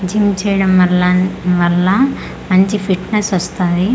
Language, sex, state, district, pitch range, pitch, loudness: Telugu, female, Andhra Pradesh, Manyam, 180-200 Hz, 185 Hz, -14 LUFS